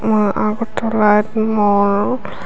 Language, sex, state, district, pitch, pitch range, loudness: Bengali, female, Tripura, West Tripura, 210 Hz, 205-220 Hz, -16 LUFS